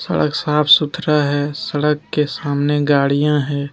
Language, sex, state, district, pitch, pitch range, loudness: Hindi, male, Jharkhand, Deoghar, 145 Hz, 145-150 Hz, -17 LUFS